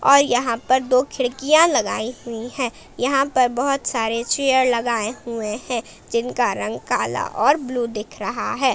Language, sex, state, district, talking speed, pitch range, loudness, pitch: Hindi, female, Jharkhand, Palamu, 165 wpm, 235-265 Hz, -20 LUFS, 250 Hz